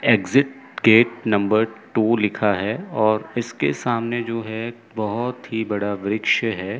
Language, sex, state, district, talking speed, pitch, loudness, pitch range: Hindi, male, Chandigarh, Chandigarh, 140 wpm, 110 Hz, -21 LUFS, 105-115 Hz